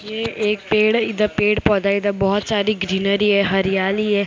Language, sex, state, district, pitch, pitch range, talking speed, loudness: Hindi, female, Maharashtra, Mumbai Suburban, 205 Hz, 200-215 Hz, 225 wpm, -18 LUFS